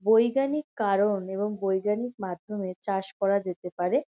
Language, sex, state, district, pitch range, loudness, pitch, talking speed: Bengali, female, West Bengal, Kolkata, 190-220 Hz, -28 LUFS, 200 Hz, 135 wpm